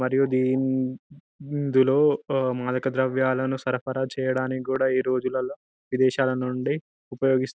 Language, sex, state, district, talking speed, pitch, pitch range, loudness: Telugu, male, Telangana, Karimnagar, 95 wpm, 130 Hz, 130-135 Hz, -25 LUFS